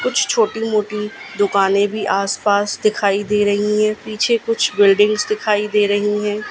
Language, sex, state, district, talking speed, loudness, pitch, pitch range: Hindi, female, Gujarat, Gandhinagar, 155 wpm, -17 LUFS, 210 Hz, 205-215 Hz